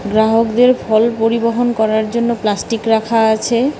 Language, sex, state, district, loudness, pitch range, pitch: Bengali, female, West Bengal, Cooch Behar, -14 LUFS, 220-235 Hz, 225 Hz